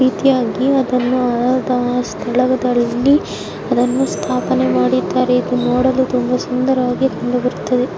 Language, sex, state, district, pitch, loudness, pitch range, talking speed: Kannada, male, Karnataka, Bijapur, 250 Hz, -16 LUFS, 245-255 Hz, 100 wpm